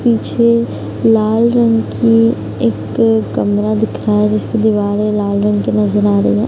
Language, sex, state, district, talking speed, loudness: Hindi, female, Bihar, Araria, 165 wpm, -14 LUFS